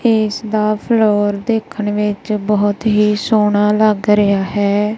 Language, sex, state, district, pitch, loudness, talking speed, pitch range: Punjabi, female, Punjab, Kapurthala, 210 Hz, -15 LUFS, 120 wpm, 205-215 Hz